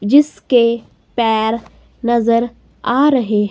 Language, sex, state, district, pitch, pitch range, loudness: Hindi, female, Himachal Pradesh, Shimla, 235 Hz, 225-250 Hz, -16 LUFS